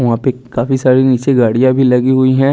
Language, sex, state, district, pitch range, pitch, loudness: Hindi, male, Chandigarh, Chandigarh, 125-130 Hz, 130 Hz, -12 LUFS